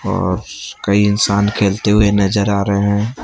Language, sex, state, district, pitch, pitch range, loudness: Hindi, male, Chhattisgarh, Raipur, 100 Hz, 100-105 Hz, -15 LUFS